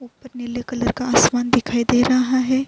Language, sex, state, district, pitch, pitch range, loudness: Urdu, female, Uttar Pradesh, Budaun, 250 Hz, 245-255 Hz, -19 LUFS